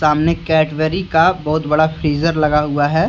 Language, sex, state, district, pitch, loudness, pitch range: Hindi, male, Jharkhand, Deoghar, 155 Hz, -16 LUFS, 150-160 Hz